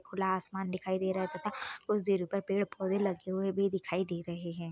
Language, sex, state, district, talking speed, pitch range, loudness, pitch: Hindi, female, Bihar, Purnia, 230 wpm, 185-195 Hz, -34 LUFS, 190 Hz